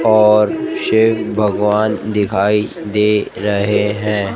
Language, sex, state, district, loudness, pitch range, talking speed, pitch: Hindi, female, Madhya Pradesh, Dhar, -15 LUFS, 105-110 Hz, 95 wpm, 105 Hz